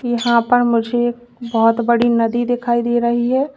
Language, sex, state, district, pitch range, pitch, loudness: Hindi, female, Uttar Pradesh, Lalitpur, 235-240 Hz, 240 Hz, -16 LUFS